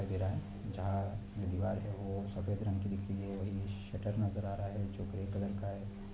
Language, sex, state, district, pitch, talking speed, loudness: Hindi, male, Chhattisgarh, Balrampur, 100 Hz, 205 wpm, -39 LUFS